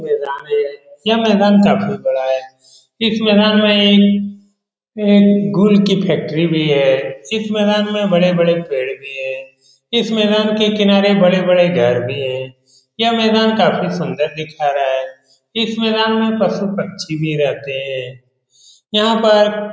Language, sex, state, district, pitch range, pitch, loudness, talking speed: Hindi, male, Bihar, Saran, 135-215 Hz, 200 Hz, -15 LUFS, 140 wpm